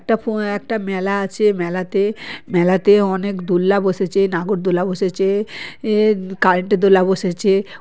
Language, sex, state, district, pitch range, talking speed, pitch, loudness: Bengali, male, West Bengal, Kolkata, 185-205 Hz, 145 wpm, 195 Hz, -17 LUFS